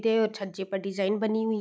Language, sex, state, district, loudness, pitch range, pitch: Hindi, female, Bihar, Gopalganj, -29 LUFS, 195-220 Hz, 210 Hz